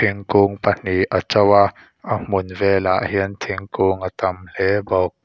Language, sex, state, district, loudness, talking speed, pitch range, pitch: Mizo, male, Mizoram, Aizawl, -19 LUFS, 160 wpm, 95-100 Hz, 95 Hz